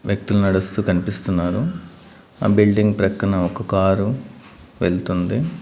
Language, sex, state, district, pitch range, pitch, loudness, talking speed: Telugu, male, Andhra Pradesh, Manyam, 95-105 Hz, 100 Hz, -20 LUFS, 95 wpm